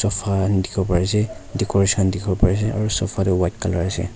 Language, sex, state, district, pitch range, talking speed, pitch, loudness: Nagamese, male, Nagaland, Kohima, 95-105 Hz, 200 wpm, 95 Hz, -20 LUFS